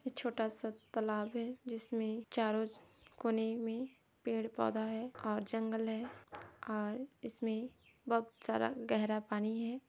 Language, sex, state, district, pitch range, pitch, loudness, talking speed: Hindi, female, Chhattisgarh, Sarguja, 220-235 Hz, 225 Hz, -39 LUFS, 135 wpm